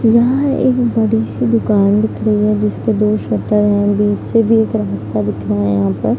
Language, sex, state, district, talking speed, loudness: Hindi, female, Bihar, Araria, 215 wpm, -15 LUFS